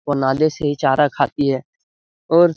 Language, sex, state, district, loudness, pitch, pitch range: Hindi, male, Bihar, Lakhisarai, -18 LUFS, 145 Hz, 135-155 Hz